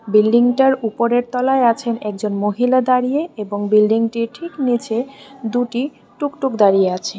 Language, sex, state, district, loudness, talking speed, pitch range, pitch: Bengali, female, Tripura, West Tripura, -17 LUFS, 135 wpm, 215-255 Hz, 235 Hz